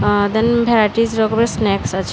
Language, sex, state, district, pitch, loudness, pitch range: Bengali, female, Tripura, West Tripura, 220 Hz, -16 LUFS, 205-230 Hz